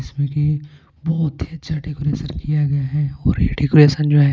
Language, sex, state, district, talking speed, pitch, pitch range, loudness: Hindi, male, Punjab, Pathankot, 195 wpm, 145 Hz, 140-150 Hz, -19 LUFS